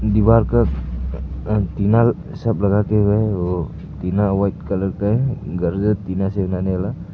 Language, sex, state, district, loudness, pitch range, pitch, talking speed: Hindi, male, Arunachal Pradesh, Papum Pare, -19 LUFS, 90-105 Hz, 100 Hz, 135 wpm